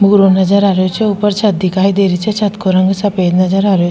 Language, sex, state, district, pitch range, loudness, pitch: Rajasthani, female, Rajasthan, Nagaur, 185-205 Hz, -12 LUFS, 195 Hz